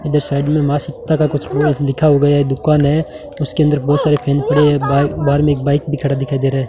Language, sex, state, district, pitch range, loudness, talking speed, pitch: Hindi, male, Rajasthan, Bikaner, 140-150 Hz, -15 LUFS, 270 wpm, 145 Hz